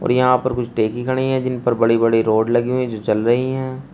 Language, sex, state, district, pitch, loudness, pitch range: Hindi, male, Uttar Pradesh, Shamli, 125 Hz, -18 LUFS, 115-130 Hz